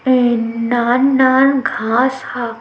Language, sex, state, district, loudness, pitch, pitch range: Chhattisgarhi, female, Chhattisgarh, Sukma, -15 LUFS, 245 Hz, 235-260 Hz